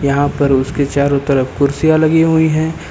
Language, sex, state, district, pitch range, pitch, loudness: Hindi, male, Uttar Pradesh, Lucknow, 140-155 Hz, 140 Hz, -14 LUFS